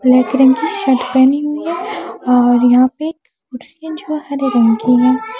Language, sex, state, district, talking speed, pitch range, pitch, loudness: Hindi, female, Himachal Pradesh, Shimla, 175 wpm, 250-305 Hz, 265 Hz, -14 LUFS